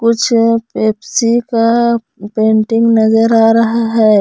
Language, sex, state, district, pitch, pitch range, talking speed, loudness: Hindi, female, Jharkhand, Palamu, 230 Hz, 220-230 Hz, 115 wpm, -12 LUFS